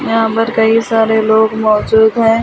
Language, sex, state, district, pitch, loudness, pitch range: Hindi, female, Delhi, New Delhi, 225 Hz, -12 LUFS, 220-225 Hz